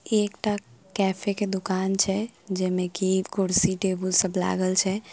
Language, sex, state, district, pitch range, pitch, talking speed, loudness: Maithili, female, Bihar, Samastipur, 185-200 Hz, 190 Hz, 150 wpm, -25 LUFS